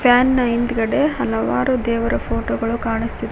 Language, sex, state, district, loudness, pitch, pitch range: Kannada, female, Karnataka, Koppal, -19 LUFS, 235 Hz, 225-250 Hz